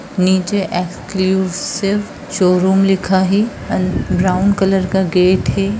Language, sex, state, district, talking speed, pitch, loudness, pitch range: Hindi, female, Bihar, Darbhanga, 115 wpm, 190 Hz, -15 LUFS, 185-195 Hz